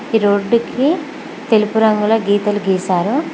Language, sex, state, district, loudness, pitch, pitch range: Telugu, female, Telangana, Mahabubabad, -15 LUFS, 220 Hz, 205-275 Hz